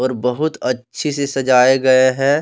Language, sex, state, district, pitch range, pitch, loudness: Hindi, male, Jharkhand, Deoghar, 125-140 Hz, 130 Hz, -16 LUFS